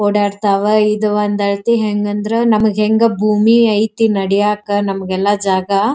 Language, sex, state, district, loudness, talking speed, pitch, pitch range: Kannada, female, Karnataka, Dharwad, -14 LUFS, 140 wpm, 210 Hz, 200-215 Hz